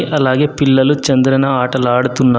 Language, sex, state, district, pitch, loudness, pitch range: Telugu, male, Telangana, Adilabad, 130 Hz, -13 LUFS, 130-135 Hz